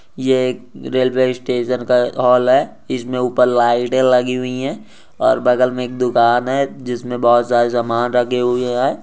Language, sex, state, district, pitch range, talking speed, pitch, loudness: Hindi, male, Rajasthan, Nagaur, 120-125 Hz, 175 wpm, 125 Hz, -16 LUFS